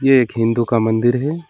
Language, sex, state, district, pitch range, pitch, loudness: Hindi, male, West Bengal, Alipurduar, 115-135 Hz, 120 Hz, -17 LUFS